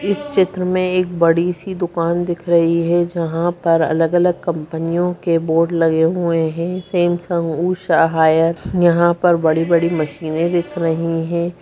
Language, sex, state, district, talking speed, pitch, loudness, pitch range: Hindi, female, Bihar, Jahanabad, 150 wpm, 170 Hz, -17 LUFS, 165-175 Hz